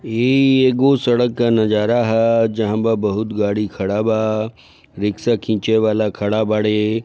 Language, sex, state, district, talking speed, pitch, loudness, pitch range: Bhojpuri, male, Bihar, Gopalganj, 145 wpm, 110 Hz, -17 LUFS, 105-120 Hz